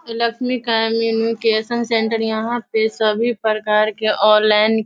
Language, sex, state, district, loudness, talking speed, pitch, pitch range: Hindi, female, Bihar, Sitamarhi, -18 LUFS, 110 wpm, 225 Hz, 215-230 Hz